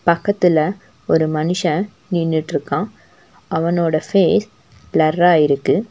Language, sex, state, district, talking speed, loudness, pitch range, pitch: Tamil, female, Tamil Nadu, Nilgiris, 80 wpm, -17 LUFS, 155-185 Hz, 170 Hz